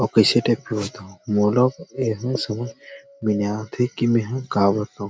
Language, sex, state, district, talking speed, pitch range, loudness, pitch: Chhattisgarhi, male, Chhattisgarh, Rajnandgaon, 200 wpm, 105-130 Hz, -22 LUFS, 115 Hz